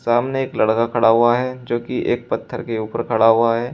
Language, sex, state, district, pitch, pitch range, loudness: Hindi, male, Uttar Pradesh, Shamli, 115 Hz, 115-120 Hz, -18 LUFS